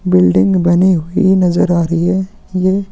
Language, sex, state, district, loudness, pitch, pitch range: Hindi, male, Chhattisgarh, Kabirdham, -13 LUFS, 180 Hz, 170-190 Hz